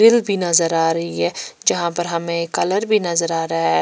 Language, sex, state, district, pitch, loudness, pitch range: Hindi, female, Chhattisgarh, Raipur, 170 Hz, -19 LUFS, 165-175 Hz